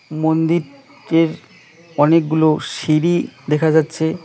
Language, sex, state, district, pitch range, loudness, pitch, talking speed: Bengali, male, West Bengal, Cooch Behar, 155-165 Hz, -17 LUFS, 160 Hz, 85 wpm